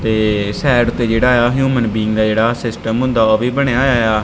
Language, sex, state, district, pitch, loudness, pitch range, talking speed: Punjabi, male, Punjab, Kapurthala, 115 Hz, -15 LUFS, 110-125 Hz, 225 wpm